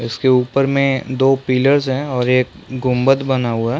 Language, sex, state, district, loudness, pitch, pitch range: Hindi, male, Chhattisgarh, Korba, -16 LUFS, 130 Hz, 125-135 Hz